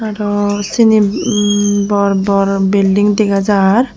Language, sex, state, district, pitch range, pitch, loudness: Chakma, female, Tripura, Unakoti, 200-210 Hz, 205 Hz, -13 LUFS